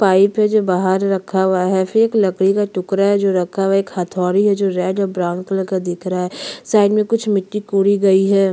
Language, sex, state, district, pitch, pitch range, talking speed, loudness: Hindi, female, Chhattisgarh, Sukma, 195 Hz, 185-205 Hz, 260 wpm, -16 LUFS